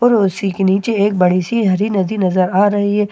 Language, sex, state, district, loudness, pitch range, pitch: Hindi, female, Bihar, Katihar, -15 LUFS, 190-210 Hz, 200 Hz